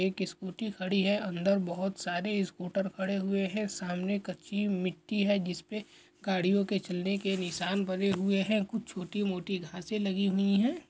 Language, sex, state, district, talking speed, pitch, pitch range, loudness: Hindi, male, Chhattisgarh, Korba, 170 wpm, 195 Hz, 185-200 Hz, -32 LUFS